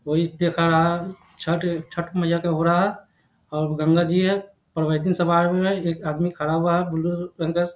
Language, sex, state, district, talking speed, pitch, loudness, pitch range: Hindi, male, Bihar, Jahanabad, 130 wpm, 170 Hz, -22 LUFS, 165-175 Hz